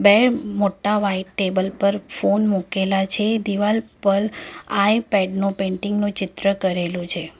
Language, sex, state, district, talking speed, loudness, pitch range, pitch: Gujarati, female, Gujarat, Valsad, 145 wpm, -20 LUFS, 190-205 Hz, 200 Hz